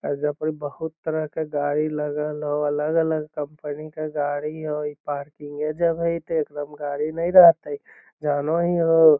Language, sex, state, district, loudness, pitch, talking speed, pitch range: Magahi, male, Bihar, Lakhisarai, -23 LUFS, 150 Hz, 200 wpm, 145-160 Hz